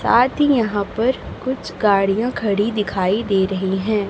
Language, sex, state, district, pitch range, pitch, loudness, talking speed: Hindi, female, Chhattisgarh, Raipur, 195-235 Hz, 210 Hz, -19 LUFS, 160 wpm